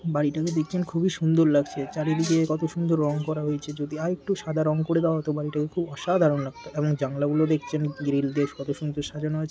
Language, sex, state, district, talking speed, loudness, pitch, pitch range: Bengali, male, West Bengal, Malda, 210 wpm, -26 LUFS, 155 Hz, 145-165 Hz